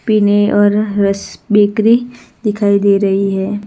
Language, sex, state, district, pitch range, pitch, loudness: Hindi, female, Gujarat, Gandhinagar, 200-210 Hz, 205 Hz, -13 LUFS